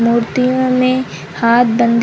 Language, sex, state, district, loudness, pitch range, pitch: Hindi, female, Chhattisgarh, Bilaspur, -14 LUFS, 230-255 Hz, 235 Hz